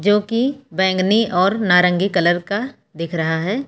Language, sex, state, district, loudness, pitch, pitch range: Hindi, female, Uttar Pradesh, Lucknow, -18 LUFS, 190 Hz, 175-215 Hz